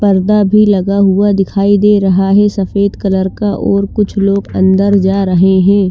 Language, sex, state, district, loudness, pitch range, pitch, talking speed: Hindi, female, Chandigarh, Chandigarh, -11 LUFS, 190-205 Hz, 200 Hz, 190 wpm